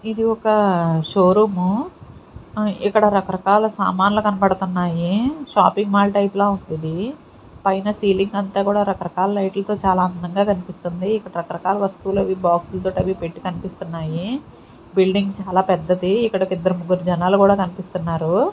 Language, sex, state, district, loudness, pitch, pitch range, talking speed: Telugu, female, Andhra Pradesh, Sri Satya Sai, -19 LUFS, 195 Hz, 180-205 Hz, 135 wpm